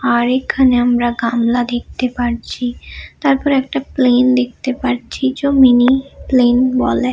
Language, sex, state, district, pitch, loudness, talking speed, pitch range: Bengali, female, West Bengal, Malda, 250 Hz, -15 LUFS, 120 wpm, 245-265 Hz